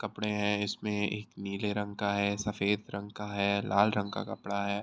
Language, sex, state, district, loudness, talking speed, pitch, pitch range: Hindi, male, Uttar Pradesh, Hamirpur, -32 LUFS, 210 wpm, 105 Hz, 100-105 Hz